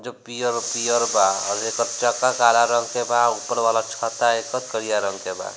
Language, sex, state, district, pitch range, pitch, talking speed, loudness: Bhojpuri, male, Bihar, Gopalganj, 115-120 Hz, 120 Hz, 215 wpm, -21 LUFS